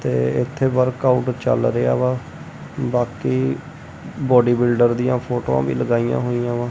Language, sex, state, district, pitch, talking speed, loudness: Punjabi, male, Punjab, Kapurthala, 120 Hz, 145 wpm, -19 LUFS